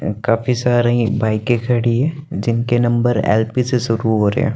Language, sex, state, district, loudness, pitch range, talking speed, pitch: Hindi, male, Chandigarh, Chandigarh, -17 LUFS, 115-125 Hz, 170 wpm, 120 Hz